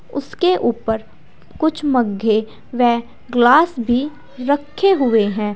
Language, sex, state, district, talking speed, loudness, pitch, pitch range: Hindi, female, Uttar Pradesh, Saharanpur, 110 wpm, -17 LUFS, 245 Hz, 225-295 Hz